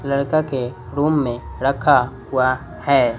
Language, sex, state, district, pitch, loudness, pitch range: Hindi, female, Bihar, West Champaran, 135 Hz, -20 LUFS, 125-140 Hz